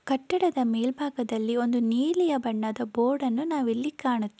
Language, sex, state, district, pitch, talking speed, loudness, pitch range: Kannada, female, Karnataka, Belgaum, 250 Hz, 125 wpm, -27 LUFS, 235-280 Hz